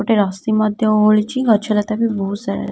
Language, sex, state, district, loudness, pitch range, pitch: Odia, female, Odisha, Khordha, -17 LUFS, 205-220 Hz, 215 Hz